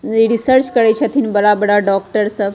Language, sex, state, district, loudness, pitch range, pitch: Bajjika, female, Bihar, Vaishali, -14 LUFS, 205-230 Hz, 215 Hz